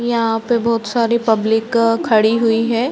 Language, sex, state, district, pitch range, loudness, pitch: Hindi, female, Uttar Pradesh, Varanasi, 225-235 Hz, -16 LUFS, 230 Hz